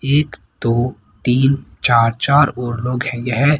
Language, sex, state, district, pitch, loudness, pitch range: Hindi, female, Haryana, Rohtak, 125 Hz, -17 LUFS, 120-140 Hz